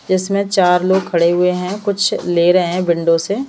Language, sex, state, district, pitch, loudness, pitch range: Hindi, female, Madhya Pradesh, Bhopal, 180 Hz, -15 LUFS, 175-195 Hz